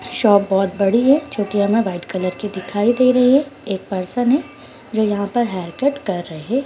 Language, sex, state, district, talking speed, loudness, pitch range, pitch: Hindi, female, Uttar Pradesh, Ghazipur, 215 wpm, -18 LUFS, 190-250 Hz, 210 Hz